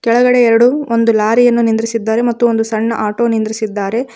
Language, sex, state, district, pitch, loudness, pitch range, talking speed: Kannada, female, Karnataka, Koppal, 230 Hz, -13 LUFS, 220-240 Hz, 145 wpm